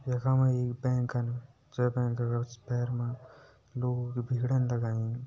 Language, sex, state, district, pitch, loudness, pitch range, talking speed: Garhwali, male, Uttarakhand, Uttarkashi, 125 Hz, -31 LUFS, 120-125 Hz, 150 wpm